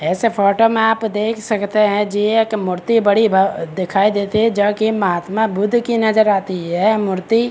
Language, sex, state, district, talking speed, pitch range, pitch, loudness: Hindi, male, Bihar, Begusarai, 190 wpm, 200-220 Hz, 210 Hz, -16 LUFS